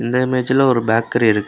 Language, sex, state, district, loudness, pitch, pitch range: Tamil, male, Tamil Nadu, Kanyakumari, -16 LUFS, 120 Hz, 115-130 Hz